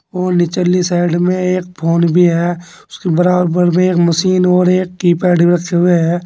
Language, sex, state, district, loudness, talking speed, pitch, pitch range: Hindi, male, Uttar Pradesh, Saharanpur, -13 LUFS, 180 wpm, 175 Hz, 175-180 Hz